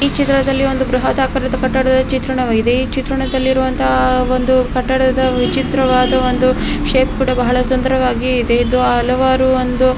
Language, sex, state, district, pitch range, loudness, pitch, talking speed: Kannada, female, Karnataka, Mysore, 255-265 Hz, -14 LUFS, 260 Hz, 115 wpm